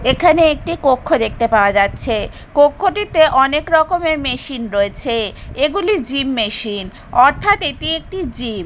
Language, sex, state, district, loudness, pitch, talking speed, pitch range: Bengali, female, Bihar, Katihar, -16 LUFS, 275 Hz, 130 wpm, 230-320 Hz